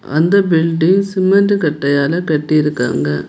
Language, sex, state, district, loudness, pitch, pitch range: Tamil, female, Tamil Nadu, Kanyakumari, -14 LUFS, 160 Hz, 140-185 Hz